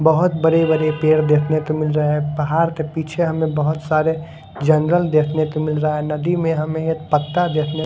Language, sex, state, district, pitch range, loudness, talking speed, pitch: Hindi, male, Odisha, Khordha, 155-160 Hz, -18 LUFS, 190 wpm, 155 Hz